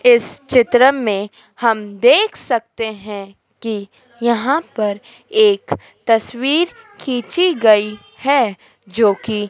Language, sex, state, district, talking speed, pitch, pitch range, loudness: Hindi, female, Madhya Pradesh, Dhar, 115 wpm, 235 Hz, 210-275 Hz, -16 LUFS